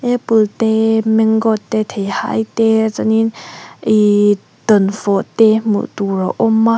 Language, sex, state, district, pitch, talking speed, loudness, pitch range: Mizo, female, Mizoram, Aizawl, 220 Hz, 135 wpm, -15 LUFS, 205-225 Hz